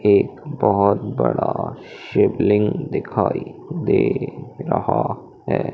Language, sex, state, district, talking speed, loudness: Hindi, male, Madhya Pradesh, Umaria, 85 wpm, -20 LUFS